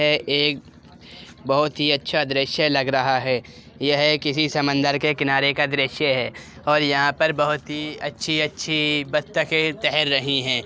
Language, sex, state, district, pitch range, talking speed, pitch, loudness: Hindi, male, Uttar Pradesh, Jyotiba Phule Nagar, 135-150 Hz, 150 wpm, 145 Hz, -21 LUFS